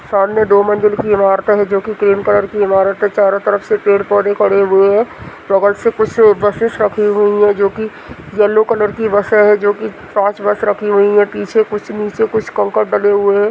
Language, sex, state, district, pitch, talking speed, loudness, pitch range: Hindi, female, Rajasthan, Churu, 205 Hz, 215 wpm, -13 LUFS, 200-210 Hz